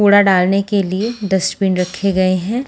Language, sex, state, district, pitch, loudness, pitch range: Hindi, female, Haryana, Jhajjar, 195 Hz, -15 LUFS, 185-205 Hz